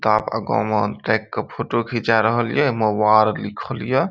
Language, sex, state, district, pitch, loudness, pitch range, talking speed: Maithili, male, Bihar, Saharsa, 110 Hz, -20 LUFS, 105-115 Hz, 175 wpm